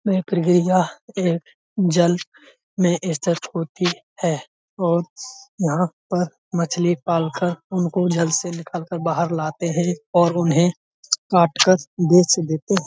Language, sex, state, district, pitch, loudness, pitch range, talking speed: Hindi, male, Uttar Pradesh, Budaun, 175 Hz, -20 LUFS, 170-180 Hz, 125 wpm